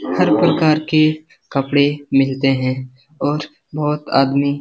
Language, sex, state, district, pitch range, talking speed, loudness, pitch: Hindi, male, Bihar, Jamui, 135-155 Hz, 130 wpm, -17 LUFS, 145 Hz